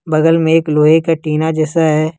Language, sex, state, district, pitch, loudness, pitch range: Hindi, male, Jharkhand, Ranchi, 160 Hz, -13 LUFS, 155-165 Hz